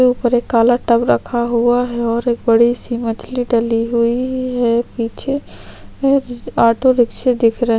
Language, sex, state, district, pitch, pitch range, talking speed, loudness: Hindi, female, Chhattisgarh, Sukma, 240 Hz, 235-245 Hz, 155 wpm, -16 LUFS